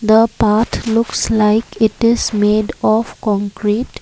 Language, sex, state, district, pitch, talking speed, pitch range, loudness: English, female, Assam, Kamrup Metropolitan, 220 Hz, 135 wpm, 210-225 Hz, -15 LUFS